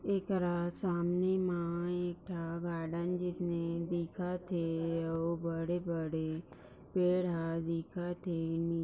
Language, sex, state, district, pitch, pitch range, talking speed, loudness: Hindi, female, Maharashtra, Nagpur, 170 Hz, 165-180 Hz, 110 wpm, -36 LUFS